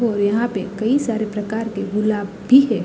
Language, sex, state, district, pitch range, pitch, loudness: Hindi, female, Uttar Pradesh, Hamirpur, 205-230 Hz, 215 Hz, -19 LUFS